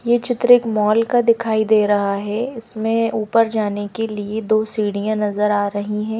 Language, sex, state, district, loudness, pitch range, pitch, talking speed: Hindi, female, Himachal Pradesh, Shimla, -18 LUFS, 210-230 Hz, 220 Hz, 195 wpm